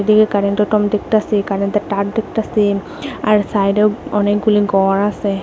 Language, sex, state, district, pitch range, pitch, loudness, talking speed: Bengali, female, Tripura, West Tripura, 200-210 Hz, 205 Hz, -16 LUFS, 120 wpm